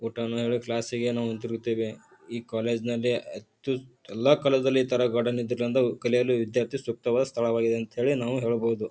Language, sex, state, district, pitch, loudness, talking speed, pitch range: Kannada, male, Karnataka, Bijapur, 120 Hz, -27 LUFS, 160 wpm, 115-125 Hz